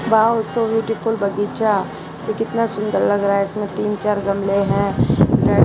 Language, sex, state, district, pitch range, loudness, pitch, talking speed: Hindi, female, Gujarat, Valsad, 200-225 Hz, -19 LUFS, 210 Hz, 160 wpm